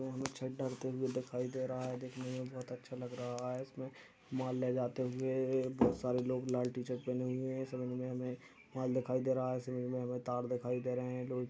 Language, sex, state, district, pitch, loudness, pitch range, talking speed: Hindi, male, Chhattisgarh, Raigarh, 125 Hz, -39 LUFS, 125-130 Hz, 220 wpm